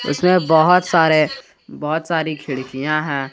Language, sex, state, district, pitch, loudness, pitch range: Hindi, male, Jharkhand, Garhwa, 155 Hz, -17 LUFS, 145-165 Hz